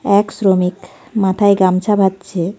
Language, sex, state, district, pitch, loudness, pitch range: Bengali, female, West Bengal, Darjeeling, 195 Hz, -15 LUFS, 185-205 Hz